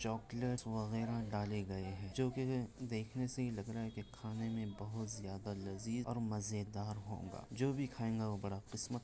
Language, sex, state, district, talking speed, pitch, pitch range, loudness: Hindi, male, Jharkhand, Sahebganj, 185 wpm, 110 Hz, 105-120 Hz, -42 LUFS